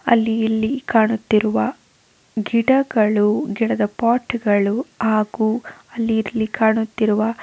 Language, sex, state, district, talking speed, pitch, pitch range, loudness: Kannada, female, Karnataka, Raichur, 90 wpm, 220 Hz, 215-230 Hz, -19 LUFS